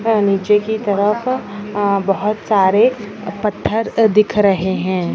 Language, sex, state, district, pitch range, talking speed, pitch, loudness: Hindi, female, Rajasthan, Nagaur, 200-215 Hz, 115 wpm, 210 Hz, -16 LUFS